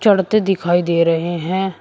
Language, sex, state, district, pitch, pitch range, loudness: Hindi, male, Uttar Pradesh, Shamli, 180 Hz, 170-195 Hz, -17 LUFS